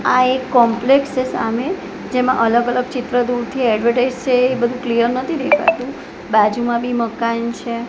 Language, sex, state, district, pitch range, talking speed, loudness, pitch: Gujarati, female, Gujarat, Gandhinagar, 235-255 Hz, 160 wpm, -17 LUFS, 245 Hz